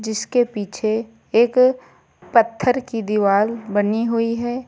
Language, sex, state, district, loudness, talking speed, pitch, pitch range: Hindi, female, Uttar Pradesh, Lucknow, -19 LUFS, 115 wpm, 230 Hz, 215-240 Hz